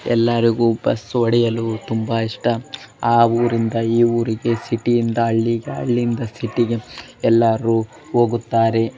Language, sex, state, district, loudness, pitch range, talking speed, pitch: Kannada, male, Karnataka, Bellary, -19 LUFS, 115-120 Hz, 115 wpm, 115 Hz